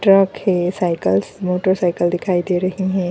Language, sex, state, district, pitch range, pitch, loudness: Hindi, female, Bihar, Gaya, 175-190 Hz, 180 Hz, -18 LUFS